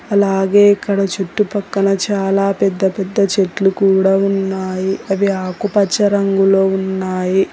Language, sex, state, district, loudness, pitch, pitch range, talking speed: Telugu, female, Telangana, Hyderabad, -15 LUFS, 195 Hz, 190-200 Hz, 105 wpm